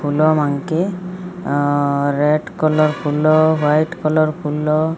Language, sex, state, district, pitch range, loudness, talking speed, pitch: Odia, female, Odisha, Sambalpur, 150-160 Hz, -17 LUFS, 110 wpm, 155 Hz